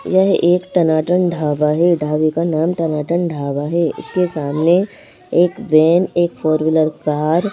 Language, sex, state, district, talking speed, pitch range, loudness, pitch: Hindi, female, Madhya Pradesh, Bhopal, 160 wpm, 155-175 Hz, -16 LUFS, 165 Hz